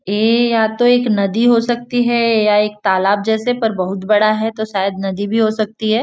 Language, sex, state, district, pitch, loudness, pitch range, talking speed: Hindi, female, Maharashtra, Nagpur, 220 Hz, -15 LUFS, 205-230 Hz, 230 wpm